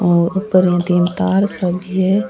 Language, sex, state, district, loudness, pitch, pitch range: Rajasthani, female, Rajasthan, Churu, -16 LUFS, 185 Hz, 175-195 Hz